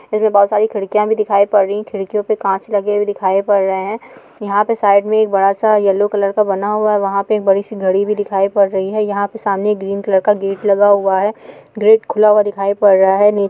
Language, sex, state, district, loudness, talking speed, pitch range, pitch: Hindi, female, Goa, North and South Goa, -14 LUFS, 270 wpm, 195-210 Hz, 205 Hz